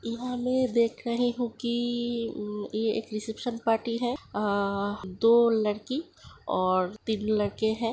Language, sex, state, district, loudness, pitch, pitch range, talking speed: Hindi, female, Uttar Pradesh, Hamirpur, -28 LUFS, 230 Hz, 210-240 Hz, 120 wpm